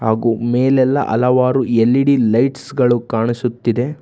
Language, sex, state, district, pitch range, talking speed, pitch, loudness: Kannada, male, Karnataka, Bangalore, 115-130 Hz, 105 wpm, 125 Hz, -15 LUFS